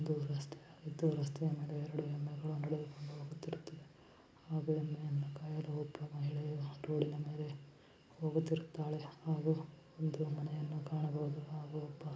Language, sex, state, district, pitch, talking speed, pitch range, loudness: Kannada, male, Karnataka, Chamarajanagar, 150 Hz, 100 wpm, 150-155 Hz, -41 LUFS